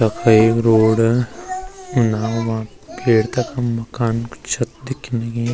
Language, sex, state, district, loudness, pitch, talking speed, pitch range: Garhwali, male, Uttarakhand, Uttarkashi, -18 LUFS, 115 Hz, 110 wpm, 115-125 Hz